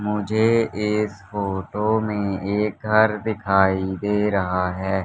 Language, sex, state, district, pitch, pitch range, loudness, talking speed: Hindi, male, Madhya Pradesh, Katni, 105 Hz, 95-105 Hz, -22 LUFS, 120 wpm